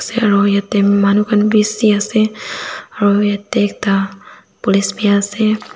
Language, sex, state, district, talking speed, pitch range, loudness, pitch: Nagamese, female, Nagaland, Dimapur, 105 wpm, 200-215 Hz, -15 LUFS, 205 Hz